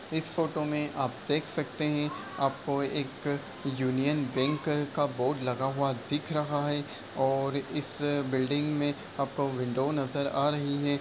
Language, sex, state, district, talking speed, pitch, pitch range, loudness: Hindi, male, Bihar, Darbhanga, 150 wpm, 145 Hz, 135-150 Hz, -30 LUFS